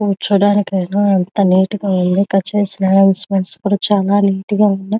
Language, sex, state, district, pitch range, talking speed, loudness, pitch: Telugu, female, Andhra Pradesh, Visakhapatnam, 190-205 Hz, 130 wpm, -15 LUFS, 195 Hz